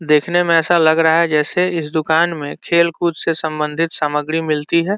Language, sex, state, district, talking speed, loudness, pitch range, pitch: Hindi, male, Bihar, Saran, 195 wpm, -16 LUFS, 155-170 Hz, 165 Hz